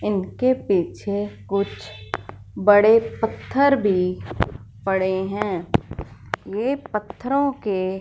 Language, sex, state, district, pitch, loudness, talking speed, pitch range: Hindi, female, Punjab, Fazilka, 200 Hz, -22 LUFS, 80 wpm, 185-225 Hz